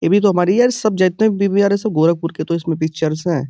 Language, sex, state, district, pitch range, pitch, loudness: Hindi, male, Uttar Pradesh, Gorakhpur, 165-200 Hz, 180 Hz, -16 LUFS